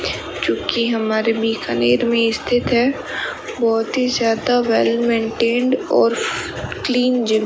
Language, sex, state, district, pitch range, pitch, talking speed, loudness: Hindi, female, Rajasthan, Bikaner, 225-245 Hz, 235 Hz, 120 wpm, -18 LUFS